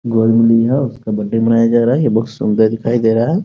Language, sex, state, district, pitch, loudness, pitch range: Hindi, male, Bihar, Muzaffarpur, 115 Hz, -14 LUFS, 110-120 Hz